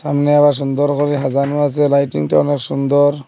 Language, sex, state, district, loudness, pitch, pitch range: Bengali, male, Assam, Hailakandi, -15 LUFS, 145 Hz, 140-145 Hz